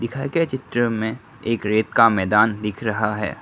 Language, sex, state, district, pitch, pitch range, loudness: Hindi, male, Assam, Kamrup Metropolitan, 110 Hz, 105-120 Hz, -21 LUFS